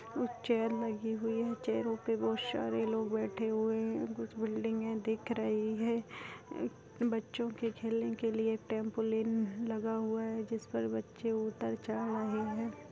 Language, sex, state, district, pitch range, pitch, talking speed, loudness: Hindi, female, Rajasthan, Nagaur, 220-225 Hz, 225 Hz, 160 wpm, -36 LUFS